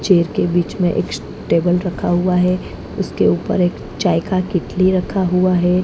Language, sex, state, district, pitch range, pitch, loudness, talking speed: Hindi, female, Maharashtra, Mumbai Suburban, 175-185 Hz, 180 Hz, -17 LUFS, 185 wpm